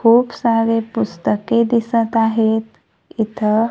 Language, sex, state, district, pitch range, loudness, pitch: Marathi, female, Maharashtra, Gondia, 220-230 Hz, -17 LUFS, 225 Hz